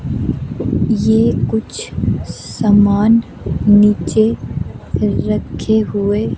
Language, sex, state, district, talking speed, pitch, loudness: Hindi, female, Himachal Pradesh, Shimla, 55 wpm, 205 Hz, -15 LUFS